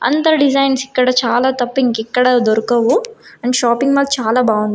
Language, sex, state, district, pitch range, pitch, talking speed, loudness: Telugu, female, Telangana, Karimnagar, 235-275 Hz, 250 Hz, 150 wpm, -14 LUFS